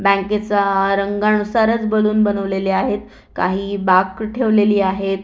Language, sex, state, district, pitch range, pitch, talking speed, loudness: Marathi, female, Maharashtra, Aurangabad, 195-215 Hz, 200 Hz, 125 wpm, -17 LUFS